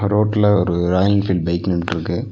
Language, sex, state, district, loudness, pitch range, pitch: Tamil, male, Tamil Nadu, Nilgiris, -18 LUFS, 85-105 Hz, 95 Hz